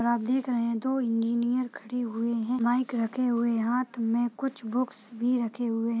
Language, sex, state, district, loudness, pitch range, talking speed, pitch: Hindi, female, Bihar, Saharsa, -28 LUFS, 230-250 Hz, 200 wpm, 235 Hz